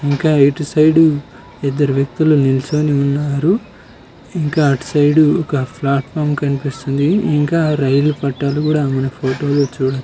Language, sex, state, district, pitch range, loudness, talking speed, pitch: Telugu, male, Telangana, Karimnagar, 140-150 Hz, -15 LUFS, 125 wpm, 145 Hz